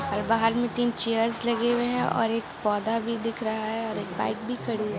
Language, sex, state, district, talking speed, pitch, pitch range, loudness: Hindi, female, Bihar, Gopalganj, 250 wpm, 230 Hz, 220-235 Hz, -27 LUFS